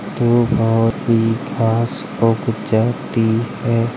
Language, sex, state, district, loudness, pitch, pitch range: Hindi, male, Uttar Pradesh, Hamirpur, -17 LUFS, 115 Hz, 115-120 Hz